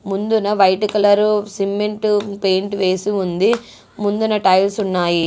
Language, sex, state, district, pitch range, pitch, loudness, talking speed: Telugu, female, Andhra Pradesh, Guntur, 190-210 Hz, 205 Hz, -17 LUFS, 115 wpm